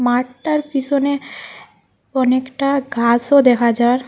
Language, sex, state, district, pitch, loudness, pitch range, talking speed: Bengali, female, Assam, Hailakandi, 260 Hz, -17 LUFS, 245-280 Hz, 105 wpm